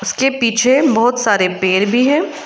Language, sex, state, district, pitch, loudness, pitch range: Hindi, female, Arunachal Pradesh, Lower Dibang Valley, 245 Hz, -14 LUFS, 205-270 Hz